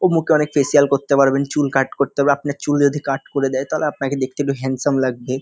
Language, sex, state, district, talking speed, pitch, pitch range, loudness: Bengali, male, West Bengal, North 24 Parganas, 245 wpm, 140 Hz, 135-145 Hz, -18 LUFS